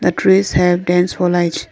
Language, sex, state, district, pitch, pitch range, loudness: English, female, Arunachal Pradesh, Lower Dibang Valley, 180 Hz, 175-180 Hz, -14 LUFS